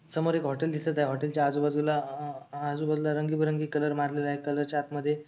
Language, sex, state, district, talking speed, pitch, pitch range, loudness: Marathi, male, Maharashtra, Sindhudurg, 205 wpm, 150 Hz, 145-155 Hz, -29 LUFS